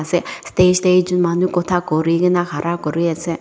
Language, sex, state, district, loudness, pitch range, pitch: Nagamese, female, Nagaland, Dimapur, -17 LUFS, 165-180 Hz, 175 Hz